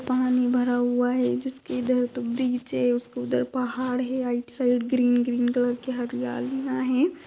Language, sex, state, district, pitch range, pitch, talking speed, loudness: Magahi, female, Bihar, Gaya, 245-255 Hz, 250 Hz, 175 wpm, -25 LUFS